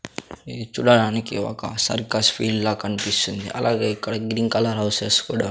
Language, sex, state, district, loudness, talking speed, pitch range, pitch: Telugu, male, Andhra Pradesh, Sri Satya Sai, -21 LUFS, 140 wpm, 105-115 Hz, 110 Hz